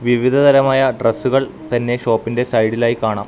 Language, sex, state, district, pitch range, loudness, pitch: Malayalam, male, Kerala, Kasaragod, 115-135 Hz, -16 LUFS, 120 Hz